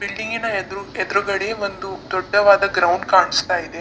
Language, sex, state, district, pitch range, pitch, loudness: Kannada, female, Karnataka, Dakshina Kannada, 190-200 Hz, 200 Hz, -19 LUFS